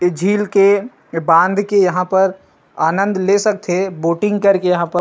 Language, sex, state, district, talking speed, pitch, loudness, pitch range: Chhattisgarhi, male, Chhattisgarh, Rajnandgaon, 155 wpm, 190 Hz, -15 LUFS, 175-200 Hz